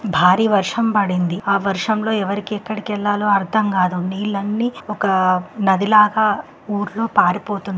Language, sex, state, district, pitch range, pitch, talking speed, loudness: Telugu, female, Andhra Pradesh, Krishna, 190-215 Hz, 205 Hz, 140 wpm, -18 LUFS